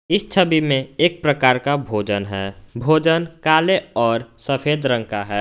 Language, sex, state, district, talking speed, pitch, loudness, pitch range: Hindi, male, Jharkhand, Garhwa, 165 wpm, 135 Hz, -19 LUFS, 115-160 Hz